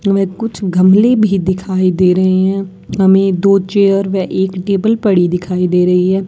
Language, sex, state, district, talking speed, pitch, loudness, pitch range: Hindi, female, Rajasthan, Bikaner, 180 wpm, 190 Hz, -13 LUFS, 185-195 Hz